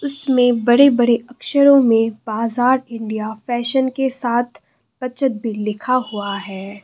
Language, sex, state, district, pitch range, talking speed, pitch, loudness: Hindi, female, Assam, Kamrup Metropolitan, 220-260 Hz, 130 wpm, 240 Hz, -17 LUFS